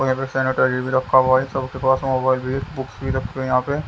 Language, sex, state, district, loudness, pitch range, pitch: Hindi, male, Haryana, Jhajjar, -20 LUFS, 130-135 Hz, 130 Hz